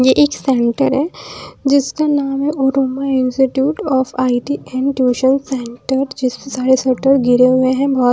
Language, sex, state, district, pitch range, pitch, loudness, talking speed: Hindi, female, Punjab, Pathankot, 255-275 Hz, 265 Hz, -15 LUFS, 135 wpm